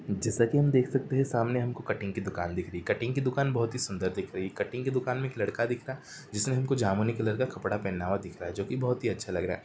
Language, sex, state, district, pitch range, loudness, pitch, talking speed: Hindi, male, Uttar Pradesh, Varanasi, 100-130 Hz, -30 LUFS, 120 Hz, 330 wpm